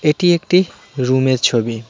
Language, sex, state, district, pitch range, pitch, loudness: Bengali, male, West Bengal, Cooch Behar, 125-175 Hz, 130 Hz, -16 LUFS